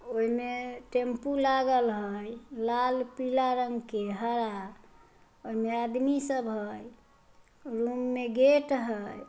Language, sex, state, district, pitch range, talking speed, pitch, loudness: Magahi, female, Bihar, Samastipur, 225-255 Hz, 110 wpm, 245 Hz, -30 LUFS